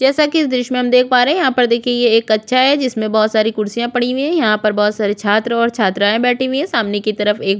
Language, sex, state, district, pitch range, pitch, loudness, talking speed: Hindi, female, Chhattisgarh, Korba, 215-255 Hz, 235 Hz, -15 LUFS, 310 wpm